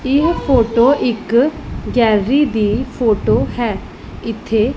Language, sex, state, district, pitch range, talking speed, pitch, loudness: Punjabi, female, Punjab, Pathankot, 220-275 Hz, 100 wpm, 240 Hz, -15 LUFS